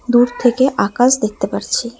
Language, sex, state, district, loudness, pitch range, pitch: Bengali, female, West Bengal, Alipurduar, -15 LUFS, 230-250 Hz, 245 Hz